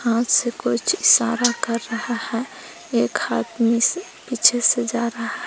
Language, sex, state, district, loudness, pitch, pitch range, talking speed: Hindi, female, Jharkhand, Palamu, -19 LUFS, 235 Hz, 230-245 Hz, 145 wpm